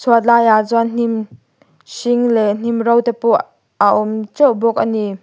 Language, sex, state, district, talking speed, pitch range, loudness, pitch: Mizo, female, Mizoram, Aizawl, 195 wpm, 220-235 Hz, -15 LUFS, 230 Hz